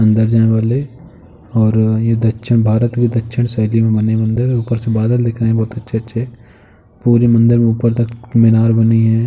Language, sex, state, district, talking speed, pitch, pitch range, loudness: Hindi, male, Uttar Pradesh, Jalaun, 180 wpm, 115 Hz, 110-120 Hz, -14 LUFS